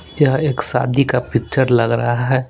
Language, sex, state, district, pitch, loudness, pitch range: Hindi, male, Bihar, Patna, 130 Hz, -17 LUFS, 120-140 Hz